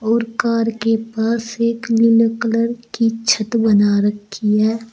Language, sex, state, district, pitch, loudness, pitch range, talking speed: Hindi, female, Uttar Pradesh, Saharanpur, 230 Hz, -17 LUFS, 220-230 Hz, 145 wpm